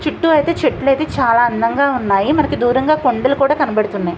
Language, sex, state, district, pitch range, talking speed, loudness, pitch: Telugu, female, Andhra Pradesh, Visakhapatnam, 235-300 Hz, 175 wpm, -15 LUFS, 265 Hz